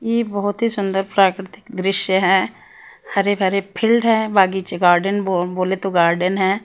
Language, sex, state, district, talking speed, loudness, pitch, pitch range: Hindi, female, Himachal Pradesh, Shimla, 155 wpm, -18 LUFS, 195 Hz, 190-205 Hz